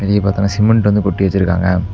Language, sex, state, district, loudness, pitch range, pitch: Tamil, male, Tamil Nadu, Namakkal, -14 LUFS, 95-105 Hz, 100 Hz